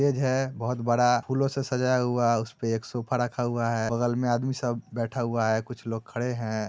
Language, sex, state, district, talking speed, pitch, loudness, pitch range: Hindi, male, Bihar, Muzaffarpur, 225 wpm, 120 Hz, -27 LUFS, 115-125 Hz